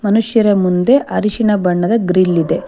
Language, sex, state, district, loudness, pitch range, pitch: Kannada, female, Karnataka, Bangalore, -14 LUFS, 180-225 Hz, 205 Hz